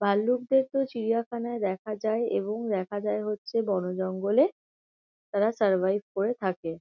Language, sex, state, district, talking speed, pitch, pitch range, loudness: Bengali, female, West Bengal, Kolkata, 125 wpm, 210 Hz, 195-230 Hz, -28 LUFS